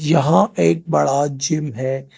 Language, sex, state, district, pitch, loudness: Hindi, male, Telangana, Hyderabad, 135 Hz, -18 LUFS